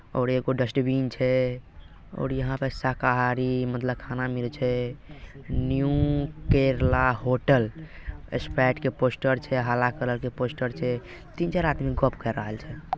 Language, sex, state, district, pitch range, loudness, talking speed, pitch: Maithili, male, Bihar, Madhepura, 125-135 Hz, -26 LUFS, 145 wpm, 130 Hz